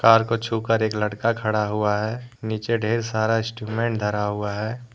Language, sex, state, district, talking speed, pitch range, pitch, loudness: Hindi, male, Jharkhand, Deoghar, 195 wpm, 105-115 Hz, 110 Hz, -23 LUFS